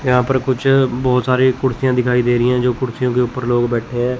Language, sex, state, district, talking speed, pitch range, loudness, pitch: Hindi, male, Chandigarh, Chandigarh, 245 wpm, 125-130 Hz, -16 LUFS, 125 Hz